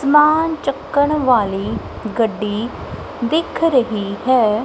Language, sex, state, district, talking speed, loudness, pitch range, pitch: Punjabi, female, Punjab, Kapurthala, 90 wpm, -18 LUFS, 215-295 Hz, 250 Hz